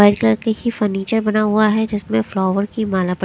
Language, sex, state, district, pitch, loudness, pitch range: Hindi, female, Himachal Pradesh, Shimla, 215 Hz, -18 LUFS, 200-220 Hz